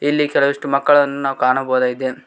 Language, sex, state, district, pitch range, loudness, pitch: Kannada, male, Karnataka, Koppal, 130-145 Hz, -17 LUFS, 140 Hz